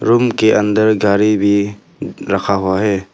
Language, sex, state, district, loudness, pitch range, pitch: Hindi, male, Arunachal Pradesh, Papum Pare, -14 LUFS, 100-110 Hz, 105 Hz